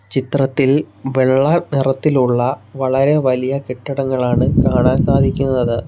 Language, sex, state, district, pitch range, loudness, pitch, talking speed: Malayalam, male, Kerala, Kollam, 125-135 Hz, -16 LUFS, 135 Hz, 80 wpm